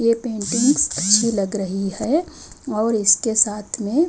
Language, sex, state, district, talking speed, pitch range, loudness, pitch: Hindi, female, Himachal Pradesh, Shimla, 145 wpm, 205-235 Hz, -18 LUFS, 220 Hz